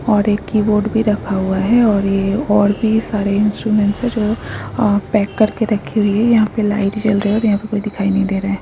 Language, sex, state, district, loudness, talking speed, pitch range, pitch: Hindi, female, Chhattisgarh, Sukma, -16 LUFS, 245 wpm, 200-215 Hz, 210 Hz